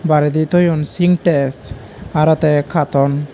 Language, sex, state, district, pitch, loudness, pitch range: Chakma, male, Tripura, Dhalai, 150 Hz, -15 LUFS, 140-165 Hz